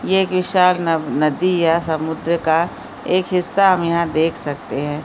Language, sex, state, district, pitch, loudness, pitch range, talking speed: Hindi, female, Bihar, Supaul, 170 Hz, -18 LUFS, 160-185 Hz, 190 wpm